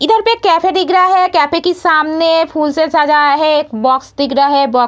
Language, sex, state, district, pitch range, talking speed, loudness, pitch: Hindi, female, Bihar, Samastipur, 285-355 Hz, 260 wpm, -12 LUFS, 315 Hz